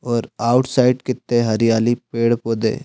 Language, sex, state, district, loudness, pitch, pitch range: Hindi, male, Madhya Pradesh, Bhopal, -18 LUFS, 120 Hz, 115-125 Hz